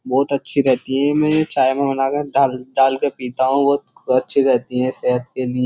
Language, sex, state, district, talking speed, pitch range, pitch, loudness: Hindi, male, Uttar Pradesh, Jyotiba Phule Nagar, 235 wpm, 130-140 Hz, 135 Hz, -18 LUFS